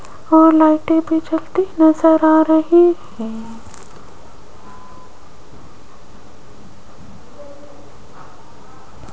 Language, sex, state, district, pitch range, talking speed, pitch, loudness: Hindi, female, Rajasthan, Jaipur, 310-320 Hz, 50 wpm, 320 Hz, -14 LUFS